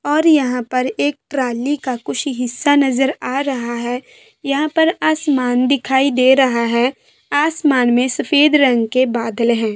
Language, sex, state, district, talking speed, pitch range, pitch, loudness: Hindi, female, Bihar, Sitamarhi, 165 wpm, 245-290 Hz, 265 Hz, -16 LUFS